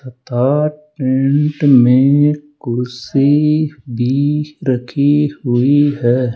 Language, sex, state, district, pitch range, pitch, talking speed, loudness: Hindi, male, Rajasthan, Jaipur, 125-150 Hz, 140 Hz, 75 wpm, -14 LUFS